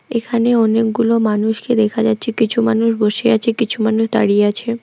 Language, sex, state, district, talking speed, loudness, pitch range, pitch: Bengali, female, West Bengal, Alipurduar, 160 wpm, -16 LUFS, 220-230 Hz, 225 Hz